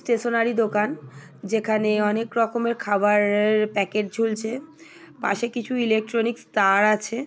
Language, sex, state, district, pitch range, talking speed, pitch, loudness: Bengali, female, West Bengal, Paschim Medinipur, 210-235 Hz, 125 wpm, 220 Hz, -22 LUFS